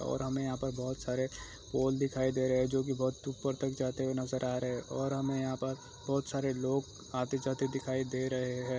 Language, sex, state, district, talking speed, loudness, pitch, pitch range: Hindi, male, Chhattisgarh, Sukma, 240 wpm, -35 LUFS, 130 Hz, 130-135 Hz